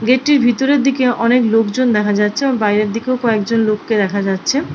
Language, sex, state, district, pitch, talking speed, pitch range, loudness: Bengali, female, West Bengal, Paschim Medinipur, 230 Hz, 175 wpm, 210-255 Hz, -15 LUFS